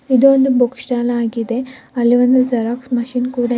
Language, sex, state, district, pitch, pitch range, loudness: Kannada, female, Karnataka, Bidar, 245 Hz, 240-255 Hz, -16 LUFS